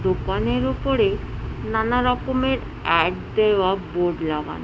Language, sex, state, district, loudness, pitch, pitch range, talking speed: Bengali, female, West Bengal, Jhargram, -22 LUFS, 195 Hz, 160-250 Hz, 105 wpm